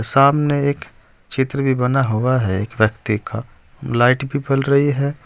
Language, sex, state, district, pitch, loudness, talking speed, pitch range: Hindi, male, Uttar Pradesh, Saharanpur, 130 Hz, -18 LUFS, 160 wpm, 110-140 Hz